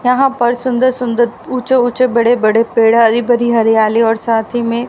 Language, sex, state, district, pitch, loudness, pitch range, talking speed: Hindi, female, Haryana, Rohtak, 240 Hz, -13 LUFS, 230-245 Hz, 210 wpm